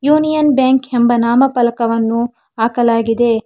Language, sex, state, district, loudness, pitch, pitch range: Kannada, female, Karnataka, Bangalore, -14 LUFS, 240 Hz, 230-265 Hz